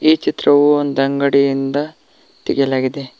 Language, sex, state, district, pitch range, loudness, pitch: Kannada, male, Karnataka, Koppal, 135-145 Hz, -16 LUFS, 140 Hz